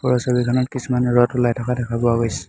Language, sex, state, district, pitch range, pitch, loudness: Assamese, male, Assam, Hailakandi, 120-125 Hz, 125 Hz, -19 LUFS